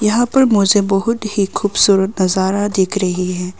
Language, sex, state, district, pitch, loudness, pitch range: Hindi, female, Arunachal Pradesh, Longding, 200 Hz, -15 LUFS, 190-210 Hz